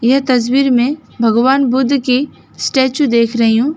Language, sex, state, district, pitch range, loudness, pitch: Hindi, female, West Bengal, Alipurduar, 240-275 Hz, -13 LUFS, 260 Hz